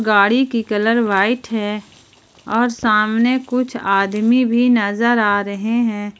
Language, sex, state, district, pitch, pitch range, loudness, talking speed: Hindi, female, Jharkhand, Ranchi, 225 Hz, 210-240 Hz, -17 LUFS, 135 wpm